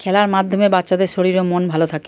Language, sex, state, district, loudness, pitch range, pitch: Bengali, male, Jharkhand, Jamtara, -16 LUFS, 180-195 Hz, 185 Hz